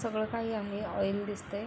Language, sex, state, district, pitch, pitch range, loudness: Marathi, female, Maharashtra, Aurangabad, 210 Hz, 205-220 Hz, -34 LUFS